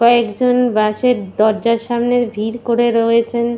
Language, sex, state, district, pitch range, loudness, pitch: Bengali, female, West Bengal, Purulia, 225-240 Hz, -15 LUFS, 235 Hz